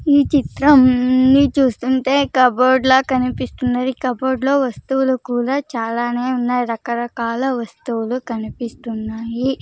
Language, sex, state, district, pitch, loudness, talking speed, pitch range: Telugu, female, Andhra Pradesh, Sri Satya Sai, 255 Hz, -17 LUFS, 100 wpm, 240-265 Hz